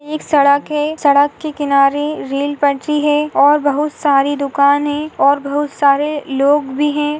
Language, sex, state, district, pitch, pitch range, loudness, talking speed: Hindi, female, Goa, North and South Goa, 290 Hz, 280-295 Hz, -15 LUFS, 165 wpm